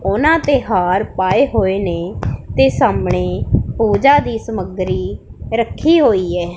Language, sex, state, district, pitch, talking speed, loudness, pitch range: Punjabi, female, Punjab, Pathankot, 185 Hz, 130 wpm, -15 LUFS, 155-230 Hz